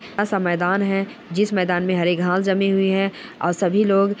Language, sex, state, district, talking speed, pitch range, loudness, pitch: Angika, male, Bihar, Samastipur, 215 wpm, 180-200 Hz, -20 LUFS, 195 Hz